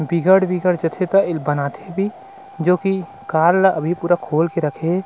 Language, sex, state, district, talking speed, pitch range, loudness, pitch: Chhattisgarhi, male, Chhattisgarh, Rajnandgaon, 200 wpm, 160-190 Hz, -18 LUFS, 175 Hz